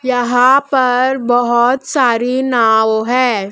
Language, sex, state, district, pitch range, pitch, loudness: Hindi, female, Madhya Pradesh, Dhar, 235-260 Hz, 245 Hz, -13 LUFS